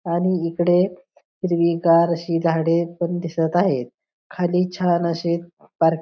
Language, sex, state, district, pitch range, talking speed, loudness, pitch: Marathi, female, Maharashtra, Pune, 165-175 Hz, 130 wpm, -21 LUFS, 170 Hz